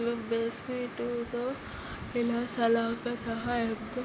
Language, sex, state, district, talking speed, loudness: Telugu, female, Andhra Pradesh, Srikakulam, 120 wpm, -31 LUFS